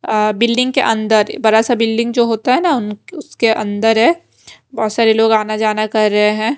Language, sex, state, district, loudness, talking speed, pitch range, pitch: Hindi, female, Haryana, Rohtak, -14 LUFS, 200 wpm, 215-235 Hz, 225 Hz